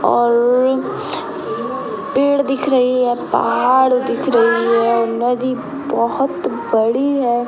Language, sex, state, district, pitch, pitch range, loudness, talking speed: Hindi, male, Bihar, Sitamarhi, 250 Hz, 235-270 Hz, -16 LUFS, 105 wpm